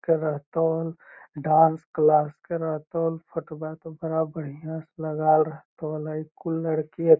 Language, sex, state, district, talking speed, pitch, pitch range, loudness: Magahi, male, Bihar, Lakhisarai, 115 wpm, 160 Hz, 155-165 Hz, -26 LUFS